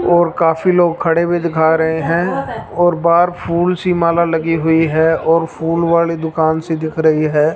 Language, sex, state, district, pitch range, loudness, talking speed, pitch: Hindi, male, Punjab, Fazilka, 160-170 Hz, -15 LUFS, 190 wpm, 165 Hz